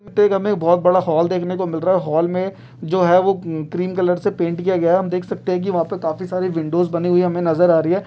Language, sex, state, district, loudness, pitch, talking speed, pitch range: Hindi, male, Uttar Pradesh, Etah, -18 LUFS, 180 Hz, 290 wpm, 170-185 Hz